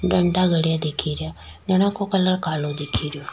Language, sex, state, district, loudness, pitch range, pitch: Rajasthani, female, Rajasthan, Nagaur, -21 LUFS, 145-185 Hz, 160 Hz